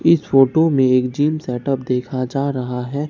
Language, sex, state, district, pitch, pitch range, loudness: Hindi, male, Bihar, Katihar, 135 Hz, 125-145 Hz, -18 LUFS